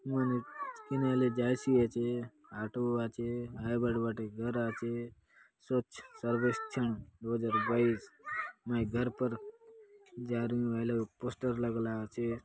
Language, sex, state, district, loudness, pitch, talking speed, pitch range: Halbi, male, Chhattisgarh, Bastar, -34 LUFS, 120 Hz, 135 wpm, 115-125 Hz